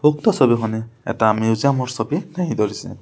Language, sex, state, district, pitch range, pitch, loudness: Assamese, male, Assam, Sonitpur, 110-150 Hz, 120 Hz, -20 LUFS